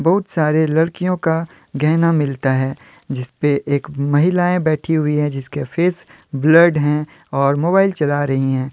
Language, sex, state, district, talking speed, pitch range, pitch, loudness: Hindi, male, Jharkhand, Deoghar, 160 wpm, 140-170 Hz, 150 Hz, -17 LUFS